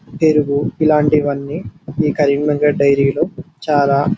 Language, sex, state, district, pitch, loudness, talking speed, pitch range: Telugu, male, Telangana, Karimnagar, 150 Hz, -15 LUFS, 115 wpm, 140-155 Hz